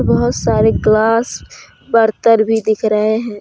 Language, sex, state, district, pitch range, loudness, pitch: Hindi, female, Jharkhand, Deoghar, 215-225 Hz, -14 LUFS, 220 Hz